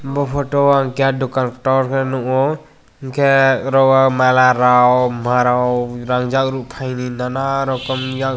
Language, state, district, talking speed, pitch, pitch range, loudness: Kokborok, Tripura, West Tripura, 130 wpm, 130 Hz, 125-135 Hz, -16 LUFS